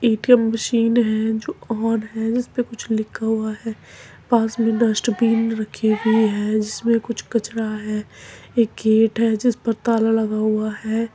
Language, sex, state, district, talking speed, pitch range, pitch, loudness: Hindi, male, Uttar Pradesh, Muzaffarnagar, 170 wpm, 220-230 Hz, 225 Hz, -20 LUFS